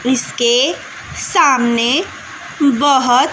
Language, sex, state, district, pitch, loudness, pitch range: Hindi, female, Bihar, West Champaran, 270 Hz, -14 LUFS, 250-315 Hz